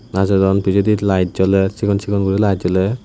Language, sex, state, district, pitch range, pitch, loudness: Chakma, male, Tripura, West Tripura, 95-100 Hz, 100 Hz, -16 LUFS